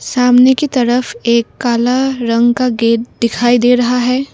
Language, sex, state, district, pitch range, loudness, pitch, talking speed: Hindi, female, Assam, Kamrup Metropolitan, 235-250 Hz, -13 LUFS, 245 Hz, 165 wpm